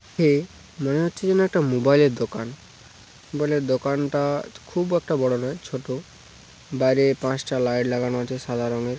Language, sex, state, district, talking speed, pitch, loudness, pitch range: Bengali, male, West Bengal, Paschim Medinipur, 145 wpm, 135 Hz, -23 LUFS, 125-145 Hz